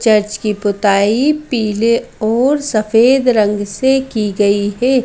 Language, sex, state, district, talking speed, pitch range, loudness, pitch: Hindi, female, Madhya Pradesh, Bhopal, 130 wpm, 210-260 Hz, -14 LUFS, 220 Hz